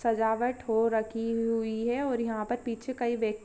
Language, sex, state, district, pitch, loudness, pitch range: Hindi, female, Jharkhand, Sahebganj, 230 Hz, -30 LUFS, 225-240 Hz